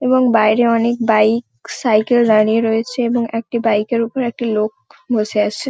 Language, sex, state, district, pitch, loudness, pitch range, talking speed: Bengali, female, West Bengal, Paschim Medinipur, 230 Hz, -16 LUFS, 220-240 Hz, 160 wpm